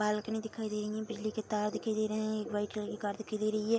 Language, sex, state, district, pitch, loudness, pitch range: Hindi, female, Bihar, Darbhanga, 215 Hz, -35 LUFS, 210-220 Hz